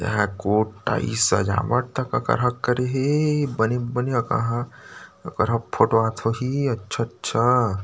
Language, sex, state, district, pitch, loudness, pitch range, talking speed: Chhattisgarhi, male, Chhattisgarh, Rajnandgaon, 115 Hz, -22 LUFS, 110-125 Hz, 135 wpm